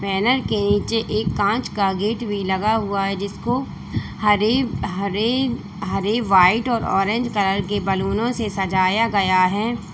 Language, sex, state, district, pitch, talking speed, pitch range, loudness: Hindi, female, Uttar Pradesh, Lalitpur, 205 Hz, 150 wpm, 195-225 Hz, -20 LUFS